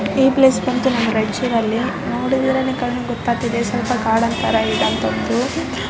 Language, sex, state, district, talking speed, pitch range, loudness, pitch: Kannada, male, Karnataka, Raichur, 130 wpm, 230-255 Hz, -18 LUFS, 240 Hz